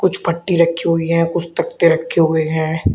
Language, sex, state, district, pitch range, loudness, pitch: Hindi, male, Uttar Pradesh, Shamli, 160-170 Hz, -16 LUFS, 165 Hz